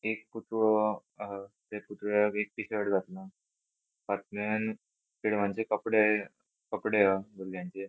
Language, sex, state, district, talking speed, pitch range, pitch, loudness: Konkani, male, Goa, North and South Goa, 115 wpm, 100-110 Hz, 105 Hz, -31 LUFS